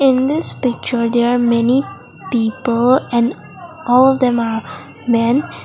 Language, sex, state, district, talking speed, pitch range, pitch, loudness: English, female, Mizoram, Aizawl, 140 wpm, 235-260 Hz, 245 Hz, -16 LUFS